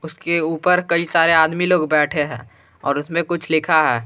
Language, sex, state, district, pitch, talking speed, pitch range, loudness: Hindi, male, Jharkhand, Garhwa, 160 Hz, 190 wpm, 150-170 Hz, -18 LUFS